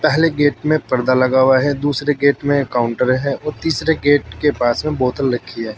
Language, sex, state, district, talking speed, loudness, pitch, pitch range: Hindi, male, Uttar Pradesh, Saharanpur, 220 wpm, -17 LUFS, 140 Hz, 130-145 Hz